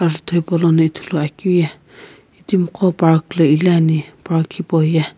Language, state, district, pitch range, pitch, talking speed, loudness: Sumi, Nagaland, Kohima, 160-175 Hz, 165 Hz, 125 wpm, -16 LUFS